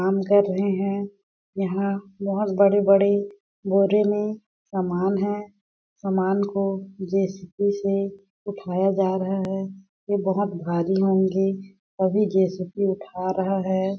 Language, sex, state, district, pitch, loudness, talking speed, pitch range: Hindi, female, Chhattisgarh, Balrampur, 195 Hz, -23 LUFS, 120 wpm, 190-200 Hz